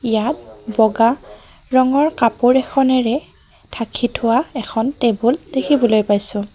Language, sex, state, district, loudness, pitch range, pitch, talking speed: Assamese, female, Assam, Kamrup Metropolitan, -17 LUFS, 225-265 Hz, 240 Hz, 100 wpm